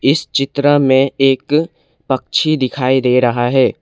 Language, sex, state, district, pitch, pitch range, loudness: Hindi, male, Assam, Kamrup Metropolitan, 135 Hz, 130-145 Hz, -14 LUFS